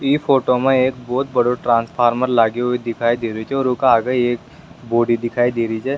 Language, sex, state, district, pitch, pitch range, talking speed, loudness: Rajasthani, male, Rajasthan, Nagaur, 120 Hz, 115-130 Hz, 230 wpm, -18 LUFS